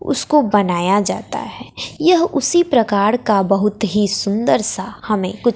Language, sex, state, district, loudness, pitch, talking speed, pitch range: Hindi, female, Bihar, West Champaran, -16 LUFS, 215 Hz, 150 wpm, 200-285 Hz